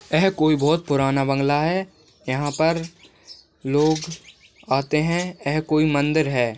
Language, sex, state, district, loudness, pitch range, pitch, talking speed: Hindi, male, Bihar, Bhagalpur, -21 LUFS, 140-160 Hz, 155 Hz, 135 wpm